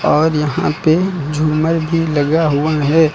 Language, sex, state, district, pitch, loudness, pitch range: Hindi, male, Uttar Pradesh, Lucknow, 155 Hz, -15 LUFS, 150-165 Hz